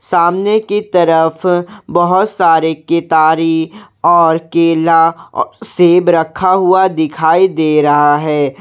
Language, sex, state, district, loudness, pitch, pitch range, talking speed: Hindi, male, Jharkhand, Garhwa, -12 LUFS, 165 Hz, 160-180 Hz, 105 wpm